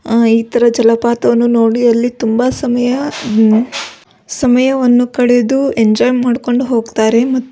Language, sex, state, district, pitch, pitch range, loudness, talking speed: Kannada, female, Karnataka, Belgaum, 240 Hz, 230-250 Hz, -12 LUFS, 135 wpm